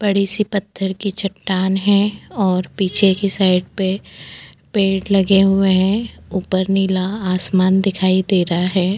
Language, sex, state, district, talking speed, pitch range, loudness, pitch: Hindi, female, Goa, North and South Goa, 140 wpm, 185-200 Hz, -17 LUFS, 195 Hz